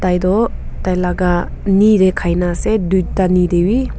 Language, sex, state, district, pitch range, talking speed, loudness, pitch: Nagamese, female, Nagaland, Kohima, 180-195 Hz, 150 wpm, -15 LUFS, 185 Hz